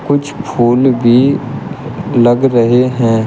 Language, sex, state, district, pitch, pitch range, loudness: Hindi, male, Uttar Pradesh, Shamli, 125 Hz, 120-135 Hz, -11 LUFS